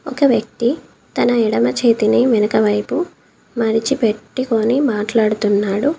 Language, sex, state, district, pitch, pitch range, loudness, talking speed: Telugu, female, Telangana, Komaram Bheem, 225 Hz, 215-255 Hz, -16 LUFS, 100 wpm